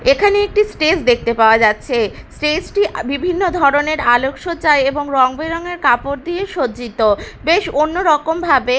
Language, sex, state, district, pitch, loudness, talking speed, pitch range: Bengali, female, Bihar, Katihar, 300 Hz, -15 LUFS, 150 wpm, 255-350 Hz